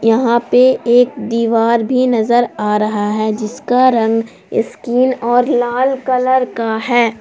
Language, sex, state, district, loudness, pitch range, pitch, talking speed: Hindi, female, Jharkhand, Palamu, -14 LUFS, 225-250 Hz, 235 Hz, 140 wpm